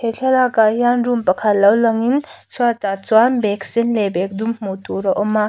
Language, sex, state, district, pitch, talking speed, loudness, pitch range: Mizo, female, Mizoram, Aizawl, 225 Hz, 240 wpm, -17 LUFS, 205-240 Hz